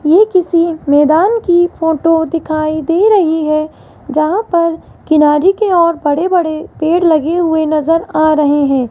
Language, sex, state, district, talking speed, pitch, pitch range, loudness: Hindi, female, Rajasthan, Jaipur, 155 wpm, 325 Hz, 310-345 Hz, -12 LUFS